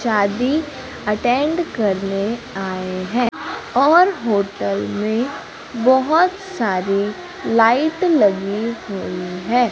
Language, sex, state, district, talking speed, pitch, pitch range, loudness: Hindi, female, Madhya Pradesh, Umaria, 85 wpm, 225 Hz, 195-265 Hz, -19 LUFS